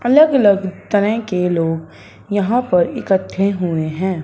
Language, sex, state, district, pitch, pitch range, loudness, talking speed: Hindi, male, Punjab, Fazilka, 195 Hz, 180-220 Hz, -17 LUFS, 125 wpm